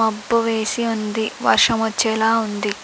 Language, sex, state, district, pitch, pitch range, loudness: Telugu, female, Andhra Pradesh, Chittoor, 220 Hz, 215-225 Hz, -19 LUFS